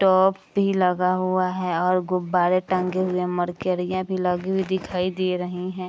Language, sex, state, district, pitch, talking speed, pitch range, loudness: Hindi, female, Bihar, Araria, 185 Hz, 175 wpm, 180-185 Hz, -23 LUFS